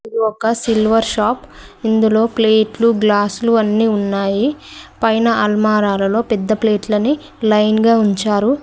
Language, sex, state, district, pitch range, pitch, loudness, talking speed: Telugu, female, Telangana, Mahabubabad, 210-225 Hz, 220 Hz, -15 LUFS, 105 wpm